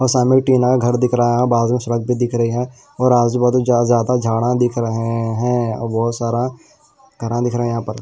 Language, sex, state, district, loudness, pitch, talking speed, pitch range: Hindi, male, Delhi, New Delhi, -17 LUFS, 120 Hz, 245 wpm, 115-125 Hz